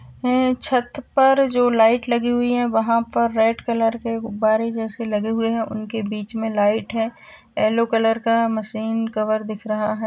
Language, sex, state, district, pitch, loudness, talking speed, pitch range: Hindi, female, Uttar Pradesh, Jalaun, 225 Hz, -20 LUFS, 185 wpm, 215-235 Hz